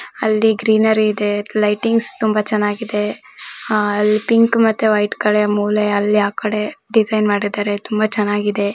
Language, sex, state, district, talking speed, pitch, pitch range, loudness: Kannada, female, Karnataka, Raichur, 135 wpm, 210 Hz, 205-220 Hz, -17 LUFS